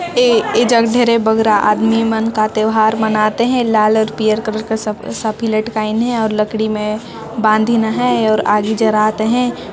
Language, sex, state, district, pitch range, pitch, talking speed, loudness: Chhattisgarhi, female, Chhattisgarh, Sarguja, 215-230 Hz, 220 Hz, 175 wpm, -14 LUFS